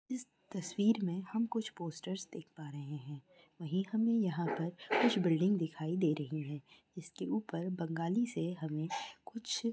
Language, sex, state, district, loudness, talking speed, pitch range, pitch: Hindi, female, West Bengal, North 24 Parganas, -36 LUFS, 165 wpm, 160-210 Hz, 175 Hz